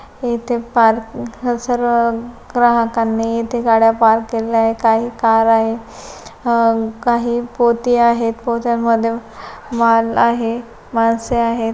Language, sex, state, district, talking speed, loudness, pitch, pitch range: Marathi, female, Maharashtra, Pune, 105 wpm, -16 LUFS, 230 Hz, 225-240 Hz